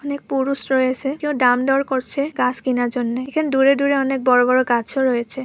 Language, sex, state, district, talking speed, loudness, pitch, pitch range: Bengali, female, West Bengal, Purulia, 210 wpm, -19 LUFS, 265 Hz, 250-275 Hz